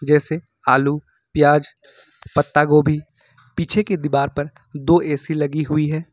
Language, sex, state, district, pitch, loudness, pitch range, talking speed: Hindi, male, Jharkhand, Ranchi, 150 Hz, -19 LUFS, 145-155 Hz, 135 wpm